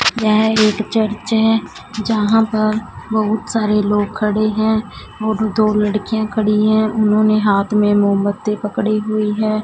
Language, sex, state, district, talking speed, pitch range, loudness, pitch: Hindi, female, Punjab, Fazilka, 145 wpm, 210-220 Hz, -16 LUFS, 215 Hz